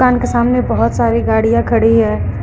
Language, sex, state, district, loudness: Hindi, female, Uttar Pradesh, Lucknow, -13 LUFS